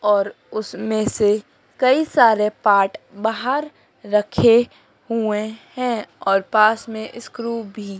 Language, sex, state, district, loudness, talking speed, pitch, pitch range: Hindi, female, Madhya Pradesh, Dhar, -19 LUFS, 110 wpm, 220 Hz, 210-230 Hz